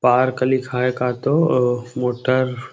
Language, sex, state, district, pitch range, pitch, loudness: Chhattisgarhi, male, Chhattisgarh, Rajnandgaon, 125-130 Hz, 125 Hz, -19 LUFS